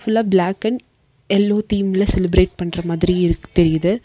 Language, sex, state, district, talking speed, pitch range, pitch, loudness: Tamil, female, Tamil Nadu, Nilgiris, 135 wpm, 175-205 Hz, 185 Hz, -18 LUFS